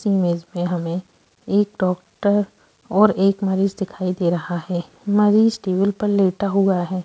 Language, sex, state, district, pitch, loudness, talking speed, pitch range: Hindi, female, Chhattisgarh, Sukma, 195 Hz, -20 LUFS, 160 wpm, 180-205 Hz